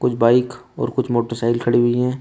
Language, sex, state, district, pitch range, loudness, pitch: Hindi, male, Uttar Pradesh, Shamli, 120-125 Hz, -19 LUFS, 120 Hz